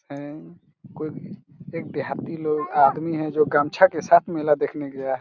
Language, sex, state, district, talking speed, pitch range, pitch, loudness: Hindi, male, Chhattisgarh, Raigarh, 185 wpm, 145-165 Hz, 155 Hz, -22 LUFS